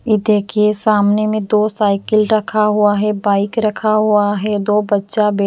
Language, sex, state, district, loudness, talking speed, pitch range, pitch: Hindi, female, Punjab, Pathankot, -15 LUFS, 165 wpm, 205-215 Hz, 210 Hz